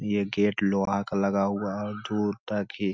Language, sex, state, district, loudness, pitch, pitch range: Hindi, male, Bihar, Lakhisarai, -27 LUFS, 100 Hz, 100-105 Hz